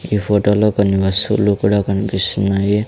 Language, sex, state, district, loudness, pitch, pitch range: Telugu, male, Andhra Pradesh, Sri Satya Sai, -16 LUFS, 100 Hz, 100-105 Hz